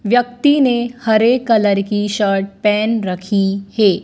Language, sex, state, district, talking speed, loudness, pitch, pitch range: Hindi, female, Madhya Pradesh, Dhar, 135 wpm, -15 LUFS, 210 Hz, 200-240 Hz